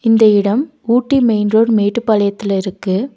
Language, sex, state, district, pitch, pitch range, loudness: Tamil, female, Tamil Nadu, Nilgiris, 220 Hz, 205-235 Hz, -14 LUFS